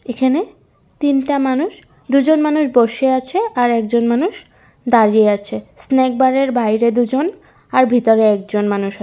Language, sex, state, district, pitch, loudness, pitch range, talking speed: Bengali, female, West Bengal, Kolkata, 250 Hz, -15 LUFS, 225-275 Hz, 135 wpm